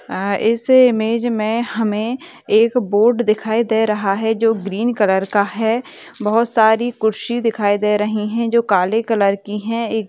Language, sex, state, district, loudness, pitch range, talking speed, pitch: Hindi, female, Bihar, Kishanganj, -17 LUFS, 210-235 Hz, 180 wpm, 220 Hz